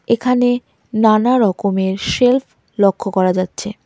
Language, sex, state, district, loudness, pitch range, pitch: Bengali, female, West Bengal, Cooch Behar, -16 LUFS, 190-245 Hz, 215 Hz